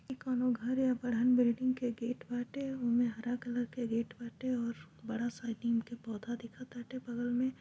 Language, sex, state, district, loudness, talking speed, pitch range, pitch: Bhojpuri, female, Uttar Pradesh, Gorakhpur, -35 LUFS, 190 wpm, 235-250 Hz, 240 Hz